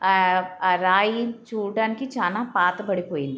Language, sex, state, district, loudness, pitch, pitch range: Telugu, female, Andhra Pradesh, Guntur, -23 LUFS, 190 Hz, 185-220 Hz